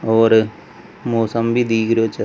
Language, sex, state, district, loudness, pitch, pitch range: Marwari, male, Rajasthan, Nagaur, -17 LUFS, 115 Hz, 110-115 Hz